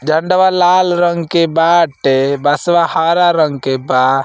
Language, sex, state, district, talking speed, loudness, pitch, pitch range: Bhojpuri, male, Uttar Pradesh, Ghazipur, 140 wpm, -12 LUFS, 165 Hz, 140-175 Hz